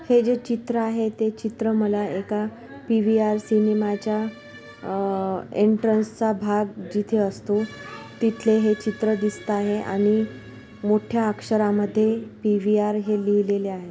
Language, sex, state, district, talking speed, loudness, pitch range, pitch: Marathi, female, Maharashtra, Pune, 110 wpm, -23 LUFS, 205-220 Hz, 215 Hz